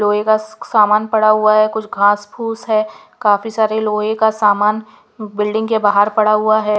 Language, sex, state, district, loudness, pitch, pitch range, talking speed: Hindi, female, Punjab, Pathankot, -15 LUFS, 215 Hz, 210-220 Hz, 185 wpm